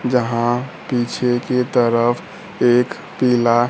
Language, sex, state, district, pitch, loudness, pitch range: Hindi, male, Bihar, Kaimur, 120 Hz, -18 LUFS, 120-125 Hz